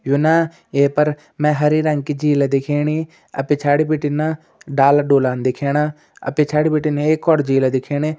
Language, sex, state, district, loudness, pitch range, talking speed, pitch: Garhwali, male, Uttarakhand, Uttarkashi, -18 LUFS, 140-155 Hz, 175 wpm, 150 Hz